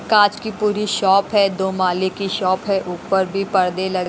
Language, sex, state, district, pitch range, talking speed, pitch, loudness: Hindi, female, Haryana, Rohtak, 185-205 Hz, 205 wpm, 195 Hz, -19 LUFS